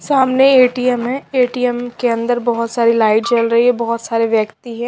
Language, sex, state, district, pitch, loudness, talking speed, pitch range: Hindi, female, Himachal Pradesh, Shimla, 240 Hz, -15 LUFS, 195 wpm, 230-250 Hz